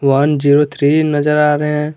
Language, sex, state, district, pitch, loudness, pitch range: Hindi, male, Jharkhand, Garhwa, 150 Hz, -13 LUFS, 145-150 Hz